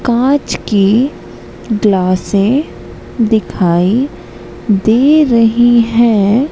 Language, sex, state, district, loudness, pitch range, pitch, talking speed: Hindi, female, Madhya Pradesh, Katni, -12 LUFS, 205-245 Hz, 225 Hz, 65 wpm